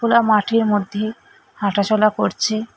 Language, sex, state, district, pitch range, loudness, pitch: Bengali, female, West Bengal, Alipurduar, 205-225 Hz, -18 LUFS, 215 Hz